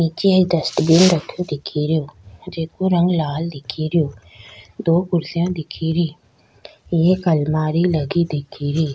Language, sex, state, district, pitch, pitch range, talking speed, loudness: Rajasthani, female, Rajasthan, Churu, 160 Hz, 150-170 Hz, 120 wpm, -19 LUFS